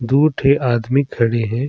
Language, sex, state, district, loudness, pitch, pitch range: Surgujia, male, Chhattisgarh, Sarguja, -17 LUFS, 130 Hz, 120-140 Hz